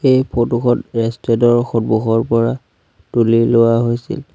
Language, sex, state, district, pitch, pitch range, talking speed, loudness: Assamese, male, Assam, Sonitpur, 115 Hz, 115-120 Hz, 110 wpm, -15 LUFS